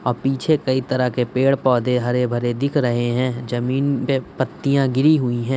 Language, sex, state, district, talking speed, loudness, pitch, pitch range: Hindi, male, Uttar Pradesh, Budaun, 195 wpm, -20 LUFS, 130 Hz, 125-135 Hz